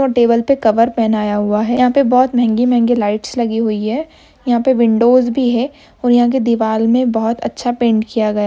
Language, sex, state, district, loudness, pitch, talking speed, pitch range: Hindi, female, Andhra Pradesh, Krishna, -14 LUFS, 235 Hz, 205 wpm, 220-250 Hz